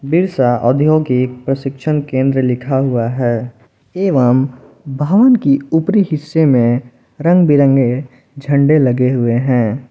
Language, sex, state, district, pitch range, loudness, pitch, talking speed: Hindi, male, Jharkhand, Palamu, 125-155 Hz, -14 LUFS, 135 Hz, 115 wpm